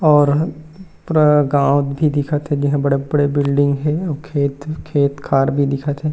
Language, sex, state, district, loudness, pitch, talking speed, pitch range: Chhattisgarhi, male, Chhattisgarh, Rajnandgaon, -17 LUFS, 145 Hz, 175 wpm, 140-150 Hz